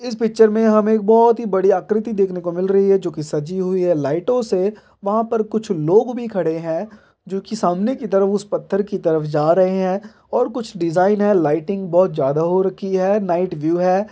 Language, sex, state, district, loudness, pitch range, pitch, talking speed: Hindi, male, Bihar, Purnia, -18 LUFS, 180-215 Hz, 195 Hz, 235 wpm